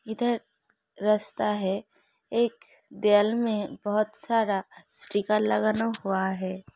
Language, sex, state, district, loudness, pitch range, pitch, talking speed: Hindi, female, Uttar Pradesh, Hamirpur, -26 LUFS, 205-225 Hz, 215 Hz, 100 wpm